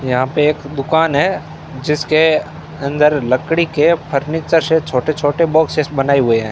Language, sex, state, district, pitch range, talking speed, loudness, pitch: Hindi, male, Rajasthan, Bikaner, 140-160 Hz, 155 wpm, -15 LUFS, 150 Hz